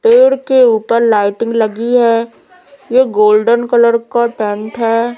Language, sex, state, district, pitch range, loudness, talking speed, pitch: Hindi, female, Madhya Pradesh, Umaria, 225-245 Hz, -12 LUFS, 140 wpm, 235 Hz